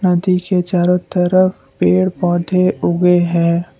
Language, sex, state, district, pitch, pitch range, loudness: Hindi, male, Assam, Kamrup Metropolitan, 180 Hz, 175-185 Hz, -15 LUFS